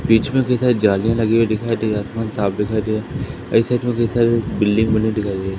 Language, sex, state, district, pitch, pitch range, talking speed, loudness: Hindi, male, Madhya Pradesh, Katni, 110 Hz, 105-115 Hz, 180 wpm, -18 LUFS